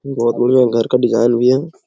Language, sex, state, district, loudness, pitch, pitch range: Hindi, male, Bihar, Lakhisarai, -14 LUFS, 120 Hz, 120-130 Hz